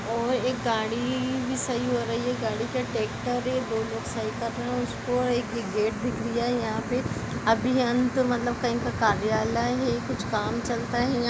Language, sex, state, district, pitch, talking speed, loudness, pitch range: Hindi, female, Chhattisgarh, Kabirdham, 240 Hz, 205 wpm, -27 LUFS, 225-250 Hz